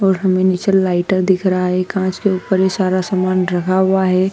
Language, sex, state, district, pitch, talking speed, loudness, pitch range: Hindi, female, Madhya Pradesh, Dhar, 185 Hz, 220 wpm, -16 LUFS, 185-190 Hz